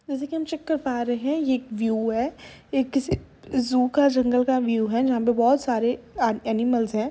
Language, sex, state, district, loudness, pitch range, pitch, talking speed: Hindi, female, Uttar Pradesh, Jalaun, -24 LUFS, 235-270 Hz, 250 Hz, 230 wpm